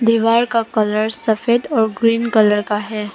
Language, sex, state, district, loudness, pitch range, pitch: Hindi, female, Arunachal Pradesh, Papum Pare, -16 LUFS, 215-230 Hz, 225 Hz